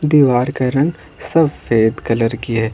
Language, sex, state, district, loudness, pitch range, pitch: Hindi, male, Jharkhand, Ranchi, -16 LUFS, 115-145 Hz, 125 Hz